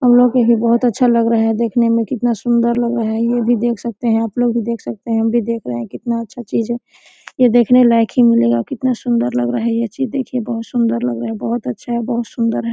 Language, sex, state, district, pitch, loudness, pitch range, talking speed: Hindi, female, Jharkhand, Sahebganj, 235 Hz, -16 LUFS, 230-240 Hz, 275 wpm